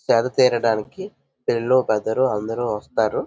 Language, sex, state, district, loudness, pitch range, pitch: Telugu, male, Andhra Pradesh, Visakhapatnam, -21 LUFS, 110-130 Hz, 120 Hz